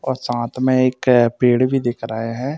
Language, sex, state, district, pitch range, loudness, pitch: Hindi, male, Madhya Pradesh, Bhopal, 120-130 Hz, -18 LUFS, 125 Hz